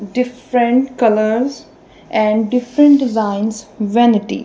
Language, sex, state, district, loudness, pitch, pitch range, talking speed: English, female, Punjab, Kapurthala, -15 LUFS, 235 Hz, 215-250 Hz, 80 wpm